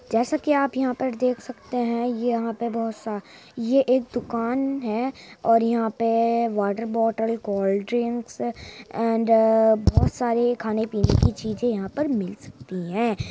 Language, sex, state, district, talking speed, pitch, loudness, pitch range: Hindi, female, Uttar Pradesh, Muzaffarnagar, 160 wpm, 230 Hz, -23 LUFS, 220-245 Hz